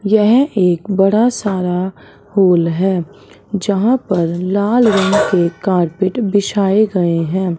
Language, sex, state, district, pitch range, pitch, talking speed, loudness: Hindi, male, Punjab, Fazilka, 175-205 Hz, 190 Hz, 120 wpm, -15 LUFS